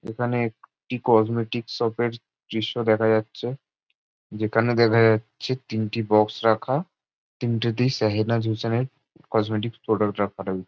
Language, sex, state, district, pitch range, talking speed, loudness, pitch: Bengali, male, West Bengal, Jalpaiguri, 110-120 Hz, 125 wpm, -24 LUFS, 115 Hz